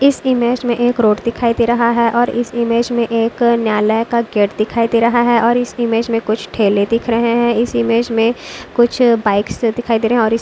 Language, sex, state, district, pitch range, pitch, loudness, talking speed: Hindi, female, Maharashtra, Dhule, 225-240 Hz, 235 Hz, -15 LUFS, 235 wpm